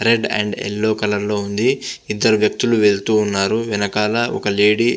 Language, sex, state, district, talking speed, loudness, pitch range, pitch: Telugu, male, Andhra Pradesh, Visakhapatnam, 170 wpm, -18 LUFS, 105-110 Hz, 105 Hz